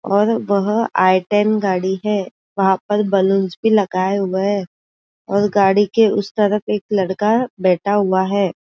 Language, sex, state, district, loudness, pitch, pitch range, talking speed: Hindi, female, Maharashtra, Aurangabad, -17 LUFS, 200 Hz, 190-210 Hz, 160 wpm